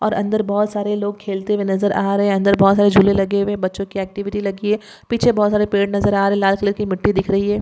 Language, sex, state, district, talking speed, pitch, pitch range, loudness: Hindi, female, Andhra Pradesh, Chittoor, 275 wpm, 200 Hz, 195-205 Hz, -18 LUFS